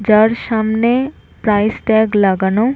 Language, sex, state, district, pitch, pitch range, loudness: Bengali, female, West Bengal, North 24 Parganas, 220 Hz, 210-230 Hz, -15 LUFS